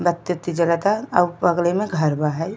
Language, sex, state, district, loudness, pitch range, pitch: Bhojpuri, female, Uttar Pradesh, Gorakhpur, -20 LUFS, 170-180 Hz, 175 Hz